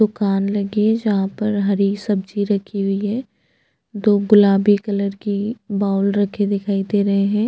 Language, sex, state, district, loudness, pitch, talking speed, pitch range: Hindi, female, Chhattisgarh, Jashpur, -19 LUFS, 205 Hz, 160 wpm, 200-210 Hz